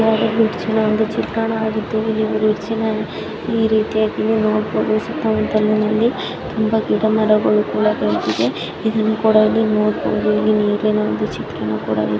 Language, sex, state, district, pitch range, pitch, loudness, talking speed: Kannada, male, Karnataka, Dharwad, 210-220 Hz, 215 Hz, -18 LUFS, 105 wpm